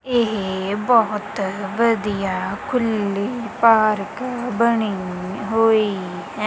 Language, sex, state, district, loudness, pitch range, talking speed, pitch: Punjabi, female, Punjab, Kapurthala, -20 LUFS, 200-230 Hz, 75 wpm, 210 Hz